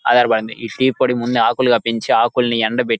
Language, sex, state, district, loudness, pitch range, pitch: Telugu, male, Andhra Pradesh, Guntur, -16 LUFS, 115-125 Hz, 120 Hz